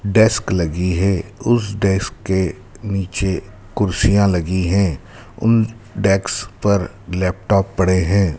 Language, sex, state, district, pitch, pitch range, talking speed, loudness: Hindi, male, Madhya Pradesh, Dhar, 95 Hz, 95-100 Hz, 115 wpm, -18 LUFS